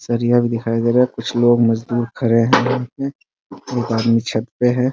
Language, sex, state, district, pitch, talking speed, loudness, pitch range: Hindi, male, Bihar, Muzaffarpur, 120 Hz, 205 wpm, -18 LUFS, 115-125 Hz